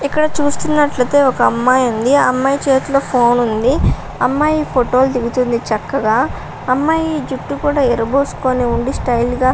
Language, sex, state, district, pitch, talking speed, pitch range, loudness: Telugu, female, Andhra Pradesh, Visakhapatnam, 260 Hz, 145 wpm, 250-285 Hz, -15 LUFS